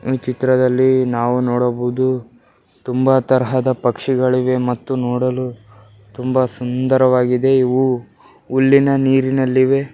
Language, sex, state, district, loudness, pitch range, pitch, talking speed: Kannada, male, Karnataka, Bellary, -16 LUFS, 125-130 Hz, 130 Hz, 95 wpm